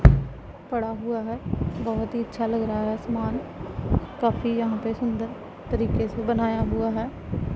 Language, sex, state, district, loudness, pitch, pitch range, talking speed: Hindi, female, Punjab, Pathankot, -27 LUFS, 225 Hz, 220-230 Hz, 150 wpm